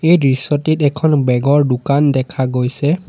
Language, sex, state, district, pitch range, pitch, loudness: Assamese, male, Assam, Sonitpur, 130-155 Hz, 145 Hz, -15 LUFS